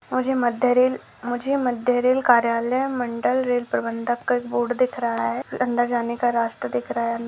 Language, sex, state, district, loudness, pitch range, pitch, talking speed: Hindi, male, Maharashtra, Solapur, -22 LUFS, 235-250 Hz, 245 Hz, 180 wpm